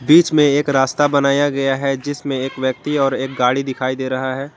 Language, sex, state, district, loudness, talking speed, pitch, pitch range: Hindi, male, Jharkhand, Garhwa, -17 LUFS, 225 wpm, 135 Hz, 130-145 Hz